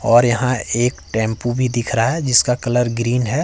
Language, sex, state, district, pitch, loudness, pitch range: Hindi, male, Jharkhand, Ranchi, 120 Hz, -17 LUFS, 115-125 Hz